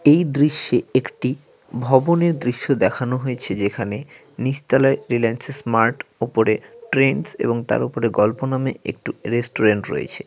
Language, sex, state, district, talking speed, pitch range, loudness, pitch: Bengali, male, West Bengal, Cooch Behar, 130 wpm, 115-140 Hz, -20 LUFS, 125 Hz